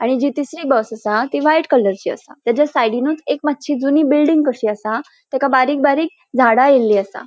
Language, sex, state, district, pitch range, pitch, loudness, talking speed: Konkani, female, Goa, North and South Goa, 230-295 Hz, 270 Hz, -16 LUFS, 190 wpm